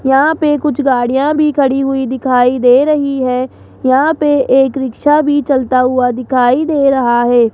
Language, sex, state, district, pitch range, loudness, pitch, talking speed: Hindi, male, Rajasthan, Jaipur, 255-290 Hz, -12 LUFS, 265 Hz, 175 wpm